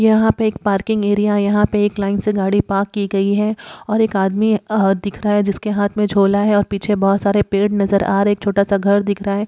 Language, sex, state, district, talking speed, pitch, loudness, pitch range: Hindi, female, Uttar Pradesh, Muzaffarnagar, 270 wpm, 205 Hz, -17 LUFS, 200-210 Hz